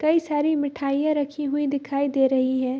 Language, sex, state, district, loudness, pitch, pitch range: Hindi, female, Bihar, Madhepura, -23 LUFS, 285 Hz, 275-295 Hz